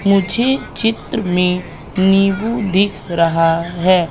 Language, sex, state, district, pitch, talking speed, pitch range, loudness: Hindi, female, Madhya Pradesh, Katni, 190 Hz, 100 wpm, 175-210 Hz, -16 LUFS